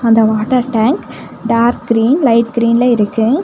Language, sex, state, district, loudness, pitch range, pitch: Tamil, female, Tamil Nadu, Nilgiris, -13 LUFS, 225-245 Hz, 235 Hz